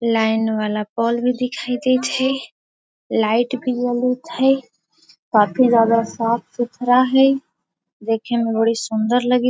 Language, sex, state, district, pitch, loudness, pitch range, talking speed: Magahi, female, Bihar, Gaya, 240 Hz, -19 LUFS, 225-255 Hz, 125 wpm